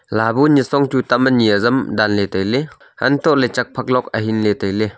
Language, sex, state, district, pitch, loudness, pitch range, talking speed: Wancho, male, Arunachal Pradesh, Longding, 120 Hz, -16 LUFS, 110-130 Hz, 155 wpm